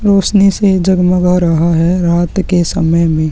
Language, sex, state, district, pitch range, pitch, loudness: Hindi, male, Uttarakhand, Tehri Garhwal, 170-190 Hz, 180 Hz, -11 LUFS